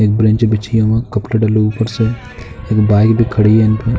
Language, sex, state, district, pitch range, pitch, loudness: Hindi, male, Uttar Pradesh, Jalaun, 105-115 Hz, 110 Hz, -13 LUFS